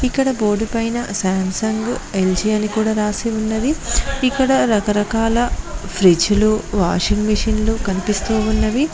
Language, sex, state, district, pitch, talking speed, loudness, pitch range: Telugu, female, Telangana, Mahabubabad, 215 Hz, 120 wpm, -18 LUFS, 205-230 Hz